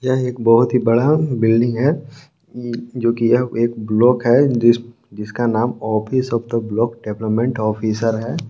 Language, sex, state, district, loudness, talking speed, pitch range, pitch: Hindi, male, Jharkhand, Palamu, -17 LUFS, 155 wpm, 115-125 Hz, 120 Hz